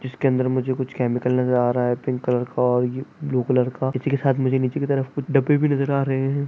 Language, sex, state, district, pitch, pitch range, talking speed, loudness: Hindi, male, West Bengal, Jhargram, 130 Hz, 125-140 Hz, 240 wpm, -22 LUFS